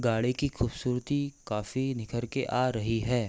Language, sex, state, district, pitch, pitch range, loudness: Hindi, male, Uttar Pradesh, Hamirpur, 125 Hz, 115-135 Hz, -31 LUFS